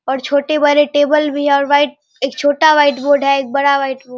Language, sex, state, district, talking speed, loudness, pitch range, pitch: Hindi, male, Bihar, Saharsa, 245 wpm, -14 LUFS, 275-290 Hz, 285 Hz